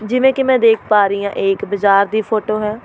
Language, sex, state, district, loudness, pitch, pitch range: Punjabi, female, Delhi, New Delhi, -15 LUFS, 215 Hz, 200-225 Hz